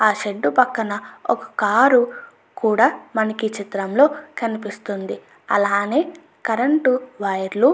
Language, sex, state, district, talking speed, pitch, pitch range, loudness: Telugu, female, Andhra Pradesh, Anantapur, 115 wpm, 225 Hz, 205-275 Hz, -20 LUFS